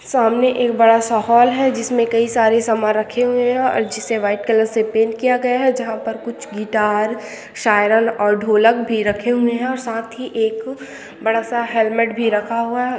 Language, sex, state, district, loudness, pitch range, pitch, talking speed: Hindi, female, Bihar, Jamui, -17 LUFS, 220-245 Hz, 230 Hz, 205 wpm